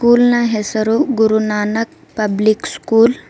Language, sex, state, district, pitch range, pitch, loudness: Kannada, female, Karnataka, Bidar, 215-235 Hz, 220 Hz, -15 LUFS